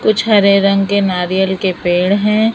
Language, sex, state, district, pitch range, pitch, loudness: Hindi, female, Maharashtra, Mumbai Suburban, 190-210 Hz, 200 Hz, -13 LUFS